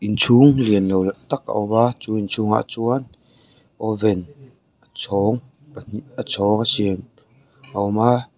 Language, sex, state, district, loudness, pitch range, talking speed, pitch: Mizo, male, Mizoram, Aizawl, -19 LUFS, 105-125 Hz, 150 wpm, 110 Hz